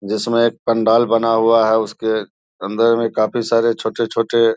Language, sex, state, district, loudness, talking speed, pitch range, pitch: Hindi, male, Bihar, Saharsa, -17 LUFS, 170 wpm, 110-115 Hz, 115 Hz